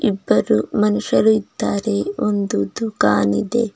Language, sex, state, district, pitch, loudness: Kannada, female, Karnataka, Bidar, 150 Hz, -18 LUFS